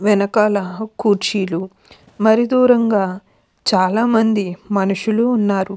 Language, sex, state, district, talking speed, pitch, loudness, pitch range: Telugu, female, Andhra Pradesh, Krishna, 85 wpm, 205 Hz, -17 LUFS, 195-220 Hz